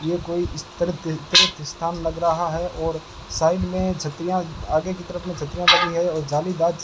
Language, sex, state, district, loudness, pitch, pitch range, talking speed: Hindi, male, Rajasthan, Bikaner, -22 LUFS, 170 Hz, 160-175 Hz, 200 wpm